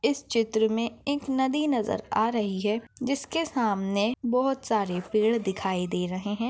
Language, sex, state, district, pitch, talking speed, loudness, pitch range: Hindi, female, Maharashtra, Nagpur, 225 Hz, 165 wpm, -27 LUFS, 205-265 Hz